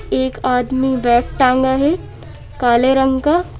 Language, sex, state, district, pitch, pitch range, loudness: Hindi, female, Madhya Pradesh, Bhopal, 260 Hz, 245-265 Hz, -16 LUFS